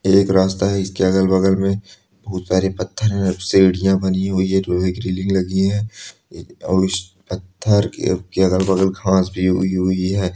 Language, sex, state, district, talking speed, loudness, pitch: Hindi, male, Andhra Pradesh, Srikakulam, 145 wpm, -18 LUFS, 95 Hz